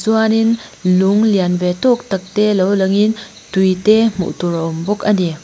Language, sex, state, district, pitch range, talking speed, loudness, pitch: Mizo, female, Mizoram, Aizawl, 185-215 Hz, 200 wpm, -15 LUFS, 195 Hz